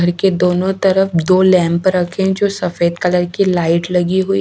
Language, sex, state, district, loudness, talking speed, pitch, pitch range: Hindi, female, Haryana, Charkhi Dadri, -14 LUFS, 205 wpm, 180 Hz, 175-190 Hz